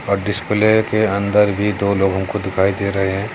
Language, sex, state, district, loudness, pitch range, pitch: Hindi, male, Maharashtra, Sindhudurg, -17 LUFS, 95-105 Hz, 100 Hz